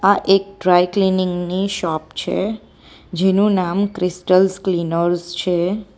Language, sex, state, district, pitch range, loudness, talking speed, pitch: Gujarati, female, Gujarat, Valsad, 175-195 Hz, -18 LUFS, 120 wpm, 185 Hz